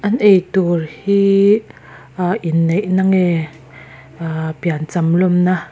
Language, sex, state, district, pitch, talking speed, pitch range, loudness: Mizo, female, Mizoram, Aizawl, 180 Hz, 115 wpm, 165-195 Hz, -16 LUFS